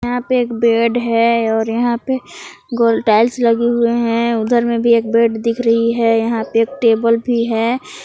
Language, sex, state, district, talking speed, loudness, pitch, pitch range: Hindi, female, Jharkhand, Palamu, 200 wpm, -15 LUFS, 230 Hz, 230-235 Hz